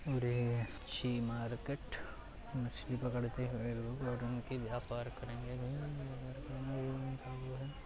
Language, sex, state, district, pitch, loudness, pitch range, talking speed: Hindi, male, Uttar Pradesh, Hamirpur, 125 Hz, -41 LUFS, 120-130 Hz, 105 wpm